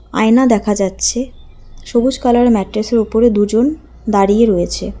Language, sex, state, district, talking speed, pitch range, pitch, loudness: Bengali, female, West Bengal, Alipurduar, 120 wpm, 205-240 Hz, 225 Hz, -14 LUFS